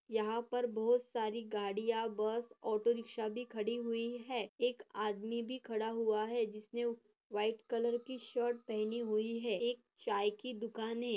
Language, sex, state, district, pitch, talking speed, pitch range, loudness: Hindi, female, Maharashtra, Dhule, 230 Hz, 165 wpm, 215-240 Hz, -38 LUFS